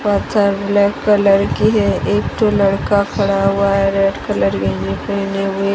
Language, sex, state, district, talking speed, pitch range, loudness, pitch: Hindi, female, Odisha, Sambalpur, 165 wpm, 195-205 Hz, -15 LUFS, 200 Hz